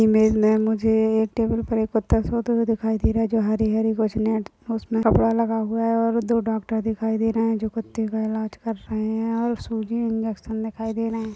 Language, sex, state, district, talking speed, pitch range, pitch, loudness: Hindi, female, Uttar Pradesh, Deoria, 215 wpm, 220-225 Hz, 225 Hz, -23 LUFS